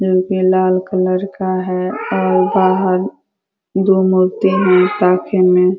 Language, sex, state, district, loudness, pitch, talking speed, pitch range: Hindi, female, Uttar Pradesh, Ghazipur, -14 LUFS, 185 Hz, 95 wpm, 185-190 Hz